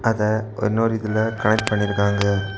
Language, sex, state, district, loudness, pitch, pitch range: Tamil, male, Tamil Nadu, Kanyakumari, -21 LUFS, 105 Hz, 100-110 Hz